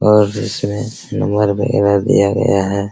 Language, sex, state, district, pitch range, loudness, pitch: Hindi, male, Bihar, Araria, 100-110 Hz, -15 LUFS, 105 Hz